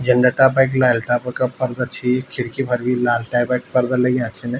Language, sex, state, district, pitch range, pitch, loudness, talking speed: Garhwali, male, Uttarakhand, Tehri Garhwal, 120-130 Hz, 125 Hz, -18 LUFS, 220 wpm